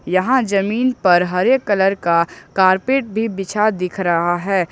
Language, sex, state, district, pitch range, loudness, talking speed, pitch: Hindi, male, Jharkhand, Ranchi, 180-220 Hz, -17 LUFS, 150 wpm, 195 Hz